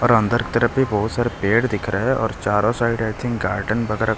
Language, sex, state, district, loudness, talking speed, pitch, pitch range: Hindi, male, Delhi, New Delhi, -20 LUFS, 270 wpm, 115 Hz, 105-120 Hz